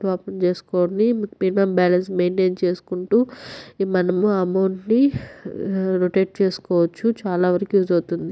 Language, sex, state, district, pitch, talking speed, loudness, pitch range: Telugu, female, Andhra Pradesh, Chittoor, 185 Hz, 110 wpm, -20 LUFS, 180-195 Hz